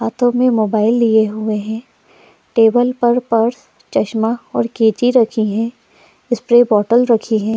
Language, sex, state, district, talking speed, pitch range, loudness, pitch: Hindi, female, Uttar Pradesh, Jalaun, 145 wpm, 220-240 Hz, -15 LUFS, 230 Hz